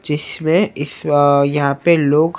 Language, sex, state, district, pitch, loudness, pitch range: Hindi, male, Maharashtra, Mumbai Suburban, 145 Hz, -15 LUFS, 145-165 Hz